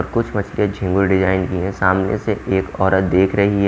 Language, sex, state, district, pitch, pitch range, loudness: Hindi, male, Haryana, Jhajjar, 95 Hz, 95-100 Hz, -18 LUFS